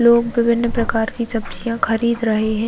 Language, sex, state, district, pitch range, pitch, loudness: Hindi, female, Uttar Pradesh, Varanasi, 225-235 Hz, 230 Hz, -19 LUFS